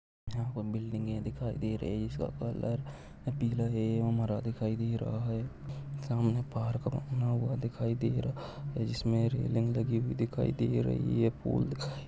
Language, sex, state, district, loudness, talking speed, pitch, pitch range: Hindi, male, Maharashtra, Nagpur, -33 LUFS, 165 wpm, 115 Hz, 115-125 Hz